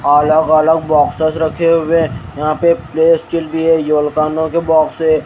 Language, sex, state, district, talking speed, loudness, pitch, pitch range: Hindi, male, Haryana, Rohtak, 150 wpm, -13 LUFS, 160 Hz, 155-165 Hz